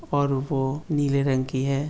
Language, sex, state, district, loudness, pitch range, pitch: Hindi, male, Uttar Pradesh, Etah, -25 LUFS, 135-145 Hz, 140 Hz